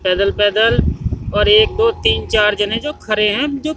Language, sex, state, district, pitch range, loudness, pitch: Hindi, male, Haryana, Jhajjar, 205-300 Hz, -15 LUFS, 215 Hz